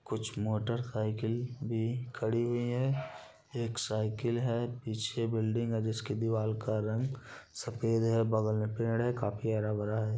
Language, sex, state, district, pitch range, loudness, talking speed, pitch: Hindi, male, Bihar, Gopalganj, 110-120 Hz, -33 LUFS, 145 wpm, 115 Hz